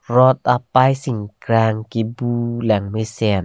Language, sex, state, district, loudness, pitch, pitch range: Karbi, male, Assam, Karbi Anglong, -18 LUFS, 115 Hz, 110-125 Hz